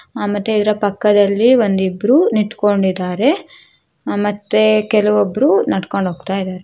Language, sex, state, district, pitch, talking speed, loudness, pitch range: Kannada, female, Karnataka, Shimoga, 205 Hz, 100 wpm, -15 LUFS, 195-215 Hz